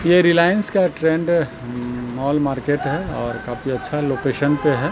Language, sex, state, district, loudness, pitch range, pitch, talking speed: Hindi, male, Bihar, Katihar, -20 LUFS, 130-165 Hz, 145 Hz, 160 wpm